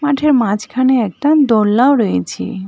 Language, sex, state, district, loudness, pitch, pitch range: Bengali, female, West Bengal, Cooch Behar, -14 LUFS, 245 Hz, 210-280 Hz